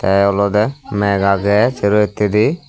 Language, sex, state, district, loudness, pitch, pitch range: Chakma, male, Tripura, Unakoti, -15 LUFS, 105 Hz, 100-105 Hz